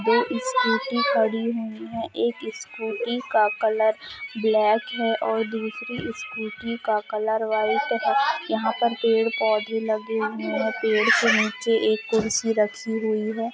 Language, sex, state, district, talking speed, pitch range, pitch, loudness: Hindi, female, Jharkhand, Sahebganj, 150 wpm, 215-235 Hz, 225 Hz, -23 LUFS